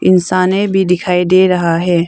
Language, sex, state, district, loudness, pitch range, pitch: Hindi, female, Arunachal Pradesh, Longding, -12 LUFS, 175-185 Hz, 180 Hz